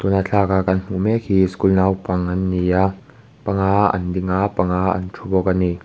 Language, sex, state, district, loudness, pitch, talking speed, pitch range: Mizo, male, Mizoram, Aizawl, -19 LUFS, 95 Hz, 205 wpm, 90-95 Hz